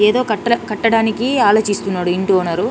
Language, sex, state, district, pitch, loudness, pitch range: Telugu, female, Telangana, Nalgonda, 215 Hz, -16 LUFS, 195-225 Hz